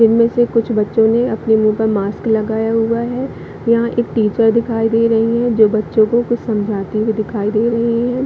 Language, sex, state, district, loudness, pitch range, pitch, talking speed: Hindi, female, Chhattisgarh, Bilaspur, -15 LUFS, 215-235 Hz, 225 Hz, 220 wpm